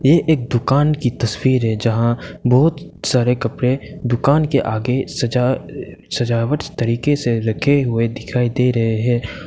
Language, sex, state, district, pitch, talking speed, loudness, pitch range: Hindi, male, Arunachal Pradesh, Lower Dibang Valley, 125 Hz, 145 wpm, -18 LUFS, 115-140 Hz